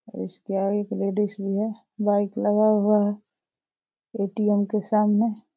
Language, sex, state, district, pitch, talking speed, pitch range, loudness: Hindi, female, Uttar Pradesh, Deoria, 210 Hz, 140 wpm, 200-215 Hz, -24 LUFS